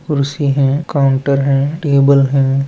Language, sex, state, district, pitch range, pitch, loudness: Hindi, male, Uttar Pradesh, Deoria, 135-140 Hz, 140 Hz, -14 LUFS